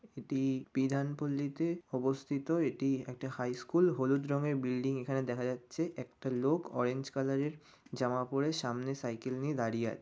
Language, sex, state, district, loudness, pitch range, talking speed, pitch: Bengali, male, West Bengal, North 24 Parganas, -35 LUFS, 125-140 Hz, 170 wpm, 135 Hz